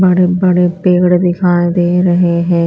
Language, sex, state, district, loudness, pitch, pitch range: Hindi, female, Chhattisgarh, Raipur, -11 LUFS, 180 Hz, 175-180 Hz